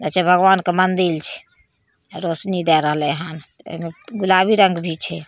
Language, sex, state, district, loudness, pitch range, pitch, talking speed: Maithili, female, Bihar, Samastipur, -17 LUFS, 160-185 Hz, 175 Hz, 180 wpm